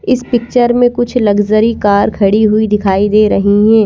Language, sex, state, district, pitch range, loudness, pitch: Hindi, female, Chandigarh, Chandigarh, 205-240 Hz, -11 LUFS, 215 Hz